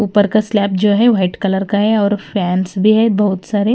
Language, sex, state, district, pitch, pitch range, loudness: Hindi, female, Punjab, Kapurthala, 205 Hz, 195-215 Hz, -14 LUFS